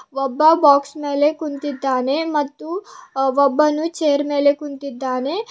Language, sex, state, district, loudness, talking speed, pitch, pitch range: Kannada, female, Karnataka, Bidar, -18 LUFS, 100 wpm, 290 Hz, 275-310 Hz